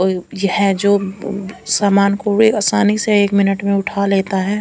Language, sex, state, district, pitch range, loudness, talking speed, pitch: Hindi, female, Punjab, Fazilka, 195-205 Hz, -16 LUFS, 155 wpm, 200 Hz